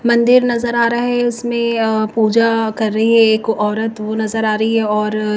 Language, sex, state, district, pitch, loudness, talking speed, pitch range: Hindi, female, Himachal Pradesh, Shimla, 225 Hz, -15 LUFS, 200 wpm, 220-235 Hz